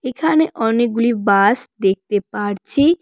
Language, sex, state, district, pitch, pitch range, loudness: Bengali, female, West Bengal, Cooch Behar, 230 Hz, 205-275 Hz, -17 LUFS